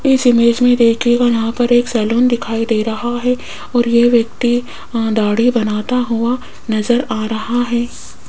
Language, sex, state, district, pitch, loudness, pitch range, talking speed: Hindi, female, Rajasthan, Jaipur, 235 Hz, -15 LUFS, 225-245 Hz, 160 wpm